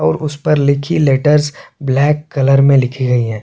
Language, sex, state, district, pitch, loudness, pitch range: Hindi, male, Chhattisgarh, Korba, 140 Hz, -13 LUFS, 135-150 Hz